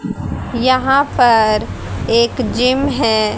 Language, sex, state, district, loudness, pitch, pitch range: Hindi, female, Haryana, Jhajjar, -15 LUFS, 245 Hz, 230-260 Hz